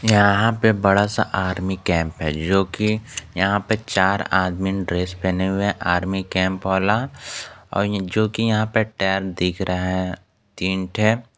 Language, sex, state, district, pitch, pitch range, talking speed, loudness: Hindi, male, Jharkhand, Garhwa, 95 Hz, 95-105 Hz, 165 wpm, -21 LUFS